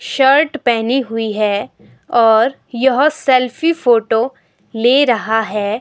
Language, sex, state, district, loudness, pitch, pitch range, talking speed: Hindi, female, Himachal Pradesh, Shimla, -14 LUFS, 240 Hz, 225-265 Hz, 105 wpm